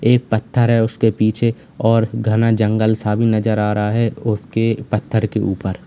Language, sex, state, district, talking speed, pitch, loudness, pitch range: Hindi, male, Uttar Pradesh, Lalitpur, 185 wpm, 110 Hz, -17 LUFS, 110-115 Hz